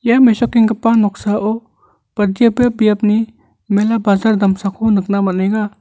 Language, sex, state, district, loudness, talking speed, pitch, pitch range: Garo, male, Meghalaya, North Garo Hills, -14 LUFS, 105 wpm, 215 Hz, 205-230 Hz